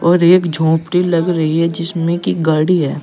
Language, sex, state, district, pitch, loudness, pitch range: Hindi, male, Uttar Pradesh, Saharanpur, 170 Hz, -14 LUFS, 160-175 Hz